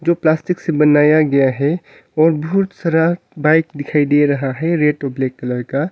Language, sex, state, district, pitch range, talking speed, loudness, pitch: Hindi, male, Arunachal Pradesh, Longding, 140-165 Hz, 190 wpm, -16 LUFS, 155 Hz